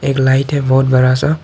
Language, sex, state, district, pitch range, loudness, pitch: Hindi, male, Tripura, Dhalai, 130-140 Hz, -13 LUFS, 135 Hz